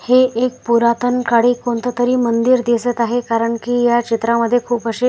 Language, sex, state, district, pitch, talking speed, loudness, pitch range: Marathi, male, Maharashtra, Washim, 240 Hz, 175 wpm, -16 LUFS, 235-245 Hz